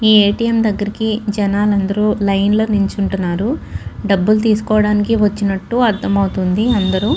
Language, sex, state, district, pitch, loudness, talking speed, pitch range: Telugu, female, Andhra Pradesh, Chittoor, 205 Hz, -15 LUFS, 100 wpm, 200-215 Hz